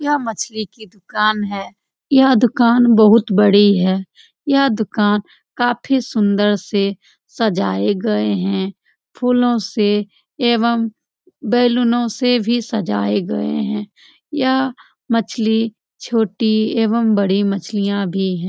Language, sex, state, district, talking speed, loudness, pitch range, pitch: Hindi, female, Bihar, Jamui, 125 wpm, -17 LUFS, 200-240 Hz, 220 Hz